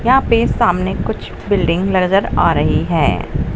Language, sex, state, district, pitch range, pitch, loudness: Hindi, female, Haryana, Jhajjar, 185-230 Hz, 195 Hz, -15 LUFS